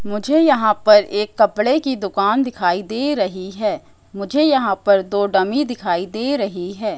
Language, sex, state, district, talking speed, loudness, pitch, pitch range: Hindi, female, Madhya Pradesh, Katni, 170 wpm, -18 LUFS, 210 Hz, 200-265 Hz